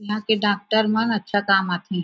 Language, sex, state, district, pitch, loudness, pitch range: Chhattisgarhi, female, Chhattisgarh, Raigarh, 205 Hz, -21 LUFS, 195-220 Hz